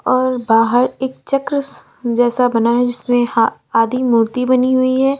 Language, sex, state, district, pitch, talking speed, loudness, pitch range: Hindi, female, Uttar Pradesh, Lalitpur, 250 Hz, 150 wpm, -16 LUFS, 240-255 Hz